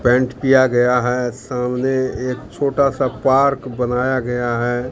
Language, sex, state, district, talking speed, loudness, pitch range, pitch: Hindi, male, Bihar, Katihar, 145 wpm, -18 LUFS, 125-130 Hz, 125 Hz